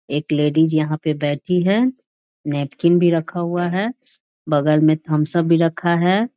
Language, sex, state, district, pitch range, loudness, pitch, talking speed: Hindi, female, Bihar, Jahanabad, 150-180 Hz, -19 LUFS, 165 Hz, 190 wpm